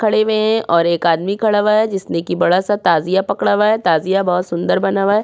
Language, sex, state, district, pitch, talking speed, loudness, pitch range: Hindi, female, Uttarakhand, Tehri Garhwal, 195 Hz, 265 wpm, -16 LUFS, 170-215 Hz